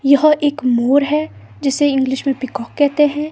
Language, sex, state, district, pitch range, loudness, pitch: Hindi, female, Himachal Pradesh, Shimla, 265-295 Hz, -16 LUFS, 280 Hz